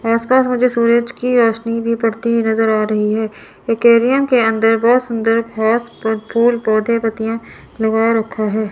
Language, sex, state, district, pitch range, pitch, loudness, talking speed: Hindi, female, Chandigarh, Chandigarh, 220-235 Hz, 230 Hz, -15 LUFS, 160 wpm